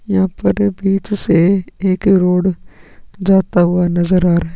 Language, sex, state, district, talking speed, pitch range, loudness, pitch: Hindi, male, Chhattisgarh, Sukma, 160 wpm, 175-195 Hz, -14 LUFS, 190 Hz